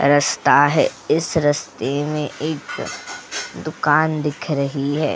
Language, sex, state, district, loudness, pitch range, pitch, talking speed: Hindi, female, Goa, North and South Goa, -20 LUFS, 145-155 Hz, 150 Hz, 115 wpm